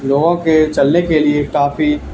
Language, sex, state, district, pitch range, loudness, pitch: Hindi, male, Haryana, Charkhi Dadri, 145-160 Hz, -14 LUFS, 150 Hz